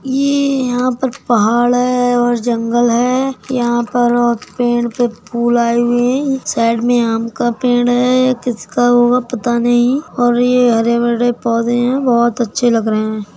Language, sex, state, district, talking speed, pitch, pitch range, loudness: Hindi, female, Uttar Pradesh, Budaun, 170 wpm, 240 Hz, 235-250 Hz, -14 LUFS